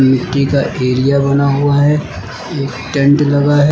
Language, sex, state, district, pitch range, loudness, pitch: Hindi, male, Uttar Pradesh, Lucknow, 135-145 Hz, -13 LUFS, 140 Hz